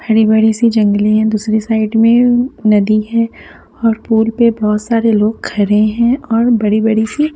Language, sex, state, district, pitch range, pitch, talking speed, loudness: Hindi, female, Haryana, Jhajjar, 215-230 Hz, 220 Hz, 185 wpm, -13 LUFS